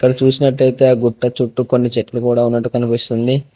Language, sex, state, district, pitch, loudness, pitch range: Telugu, male, Telangana, Hyderabad, 125 Hz, -15 LUFS, 120-130 Hz